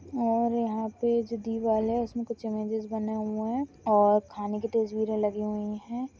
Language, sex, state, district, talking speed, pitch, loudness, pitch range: Hindi, female, Rajasthan, Churu, 185 wpm, 220 Hz, -29 LUFS, 215-235 Hz